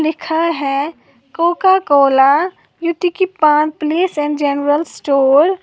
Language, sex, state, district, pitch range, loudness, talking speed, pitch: Hindi, female, Uttar Pradesh, Lalitpur, 285-340 Hz, -15 LUFS, 115 wpm, 310 Hz